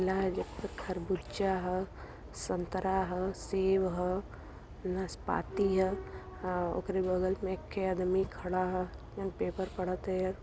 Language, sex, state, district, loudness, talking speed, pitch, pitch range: Hindi, female, Uttar Pradesh, Varanasi, -34 LUFS, 110 wpm, 185 Hz, 185-190 Hz